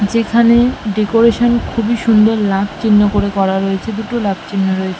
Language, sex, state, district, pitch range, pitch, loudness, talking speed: Bengali, female, West Bengal, Malda, 195-230 Hz, 215 Hz, -14 LUFS, 155 wpm